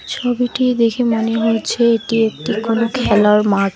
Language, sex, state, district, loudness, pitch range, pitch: Bengali, female, West Bengal, Alipurduar, -16 LUFS, 220-245 Hz, 225 Hz